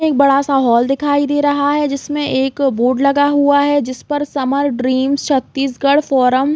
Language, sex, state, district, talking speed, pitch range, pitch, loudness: Hindi, female, Chhattisgarh, Raigarh, 175 wpm, 265-285 Hz, 280 Hz, -15 LUFS